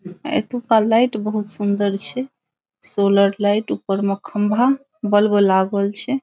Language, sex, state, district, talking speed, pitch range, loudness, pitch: Maithili, female, Bihar, Saharsa, 135 wpm, 200-230 Hz, -19 LUFS, 205 Hz